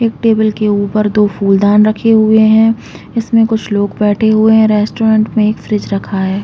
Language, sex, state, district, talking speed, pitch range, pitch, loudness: Hindi, female, Chhattisgarh, Raigarh, 205 wpm, 205-220 Hz, 215 Hz, -11 LUFS